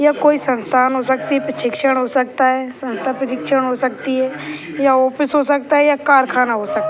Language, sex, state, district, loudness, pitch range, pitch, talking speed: Hindi, male, Bihar, Purnia, -16 LUFS, 255-280 Hz, 260 Hz, 210 wpm